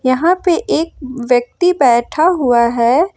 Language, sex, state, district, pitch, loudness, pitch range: Hindi, female, Jharkhand, Ranchi, 260 Hz, -14 LUFS, 245-340 Hz